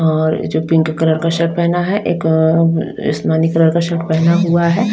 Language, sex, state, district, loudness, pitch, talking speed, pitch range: Hindi, female, Odisha, Nuapada, -15 LUFS, 165 Hz, 195 wpm, 160-170 Hz